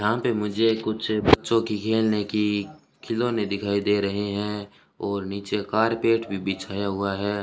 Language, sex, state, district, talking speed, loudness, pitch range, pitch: Hindi, male, Rajasthan, Bikaner, 160 wpm, -24 LUFS, 100-110 Hz, 105 Hz